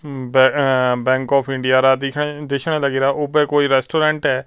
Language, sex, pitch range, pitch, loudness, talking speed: Punjabi, male, 130-150 Hz, 140 Hz, -17 LUFS, 160 wpm